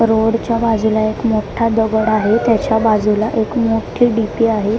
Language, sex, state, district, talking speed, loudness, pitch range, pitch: Marathi, female, Maharashtra, Mumbai Suburban, 150 wpm, -15 LUFS, 215-230 Hz, 220 Hz